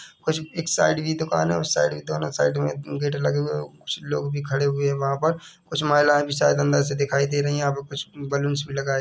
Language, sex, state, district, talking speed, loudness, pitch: Hindi, male, Chhattisgarh, Bilaspur, 260 wpm, -23 LUFS, 140 Hz